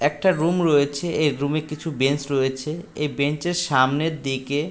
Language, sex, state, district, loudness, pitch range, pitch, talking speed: Bengali, male, West Bengal, Jalpaiguri, -22 LUFS, 140-160 Hz, 150 Hz, 165 wpm